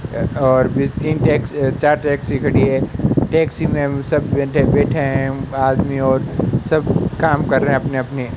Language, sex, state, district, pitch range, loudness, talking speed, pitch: Hindi, male, Rajasthan, Bikaner, 135-150 Hz, -17 LUFS, 185 wpm, 140 Hz